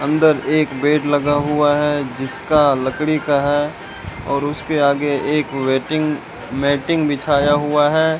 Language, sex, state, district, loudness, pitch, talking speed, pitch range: Hindi, male, Rajasthan, Bikaner, -17 LUFS, 145 Hz, 140 wpm, 140-150 Hz